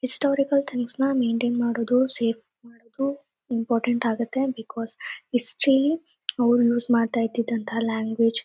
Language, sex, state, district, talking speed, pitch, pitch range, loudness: Kannada, female, Karnataka, Shimoga, 120 wpm, 240 Hz, 230-265 Hz, -24 LUFS